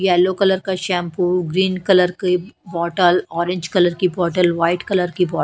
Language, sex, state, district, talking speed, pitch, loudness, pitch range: Hindi, female, Haryana, Charkhi Dadri, 190 wpm, 180 Hz, -18 LUFS, 175-185 Hz